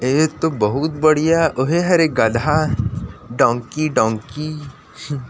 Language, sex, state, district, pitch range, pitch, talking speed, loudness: Chhattisgarhi, male, Chhattisgarh, Rajnandgaon, 125-155 Hz, 150 Hz, 90 wpm, -18 LUFS